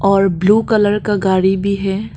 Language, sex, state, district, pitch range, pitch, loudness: Hindi, female, Arunachal Pradesh, Papum Pare, 195-210 Hz, 200 Hz, -15 LUFS